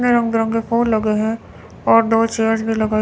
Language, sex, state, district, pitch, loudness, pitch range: Hindi, female, Chandigarh, Chandigarh, 225 Hz, -17 LUFS, 220-230 Hz